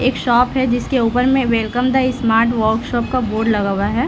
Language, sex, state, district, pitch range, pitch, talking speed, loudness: Hindi, female, Bihar, Lakhisarai, 225-255 Hz, 240 Hz, 220 wpm, -16 LUFS